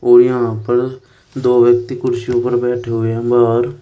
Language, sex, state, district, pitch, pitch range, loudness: Hindi, male, Uttar Pradesh, Shamli, 120 Hz, 120-125 Hz, -15 LUFS